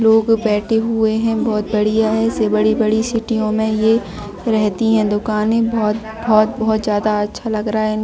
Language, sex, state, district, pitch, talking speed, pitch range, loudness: Hindi, female, Chhattisgarh, Bilaspur, 220 Hz, 185 wpm, 215-225 Hz, -17 LUFS